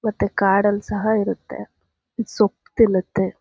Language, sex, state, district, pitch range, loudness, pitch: Kannada, female, Karnataka, Chamarajanagar, 195-220 Hz, -20 LUFS, 205 Hz